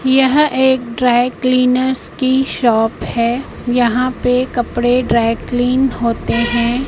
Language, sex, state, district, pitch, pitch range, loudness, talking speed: Hindi, female, Madhya Pradesh, Katni, 250 Hz, 240-260 Hz, -15 LUFS, 120 wpm